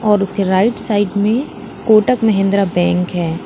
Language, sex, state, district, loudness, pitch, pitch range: Hindi, female, Uttar Pradesh, Lalitpur, -15 LUFS, 200 Hz, 190-215 Hz